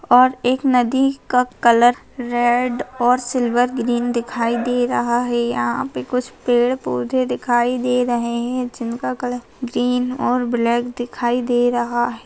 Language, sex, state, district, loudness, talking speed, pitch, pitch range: Hindi, female, Bihar, Samastipur, -19 LUFS, 145 wpm, 245 Hz, 240-250 Hz